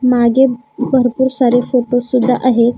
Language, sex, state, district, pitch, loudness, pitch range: Marathi, female, Maharashtra, Gondia, 250 Hz, -14 LUFS, 245-260 Hz